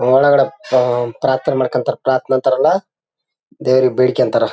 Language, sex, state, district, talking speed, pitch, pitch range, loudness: Kannada, male, Karnataka, Bellary, 120 wpm, 130 Hz, 125-130 Hz, -15 LUFS